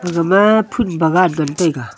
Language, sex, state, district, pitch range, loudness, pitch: Wancho, female, Arunachal Pradesh, Longding, 160-195 Hz, -15 LUFS, 175 Hz